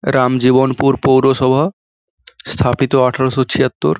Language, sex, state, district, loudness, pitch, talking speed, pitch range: Bengali, male, West Bengal, Paschim Medinipur, -14 LUFS, 130 Hz, 75 wpm, 130-135 Hz